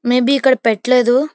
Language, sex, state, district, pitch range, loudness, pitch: Telugu, female, Karnataka, Bellary, 245-265 Hz, -14 LUFS, 250 Hz